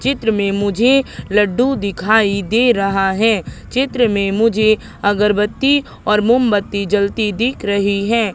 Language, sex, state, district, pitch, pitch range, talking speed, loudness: Hindi, female, Madhya Pradesh, Katni, 210 Hz, 200-240 Hz, 130 wpm, -16 LUFS